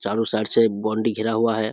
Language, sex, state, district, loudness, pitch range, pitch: Hindi, male, Bihar, Samastipur, -21 LUFS, 110-115 Hz, 110 Hz